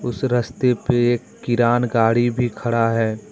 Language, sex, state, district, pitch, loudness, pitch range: Hindi, male, Jharkhand, Deoghar, 120 Hz, -19 LUFS, 115-120 Hz